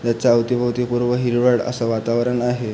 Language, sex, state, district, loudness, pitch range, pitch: Marathi, male, Maharashtra, Pune, -19 LUFS, 115-125 Hz, 120 Hz